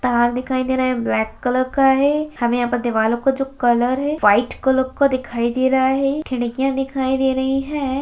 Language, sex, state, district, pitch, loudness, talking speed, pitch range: Hindi, female, Bihar, Jahanabad, 260 Hz, -19 LUFS, 215 wpm, 240-270 Hz